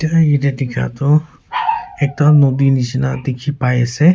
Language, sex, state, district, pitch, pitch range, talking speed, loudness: Nagamese, male, Nagaland, Kohima, 140 Hz, 130-150 Hz, 145 wpm, -15 LUFS